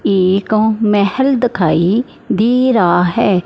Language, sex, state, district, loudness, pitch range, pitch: Hindi, female, Punjab, Fazilka, -13 LUFS, 185-240 Hz, 210 Hz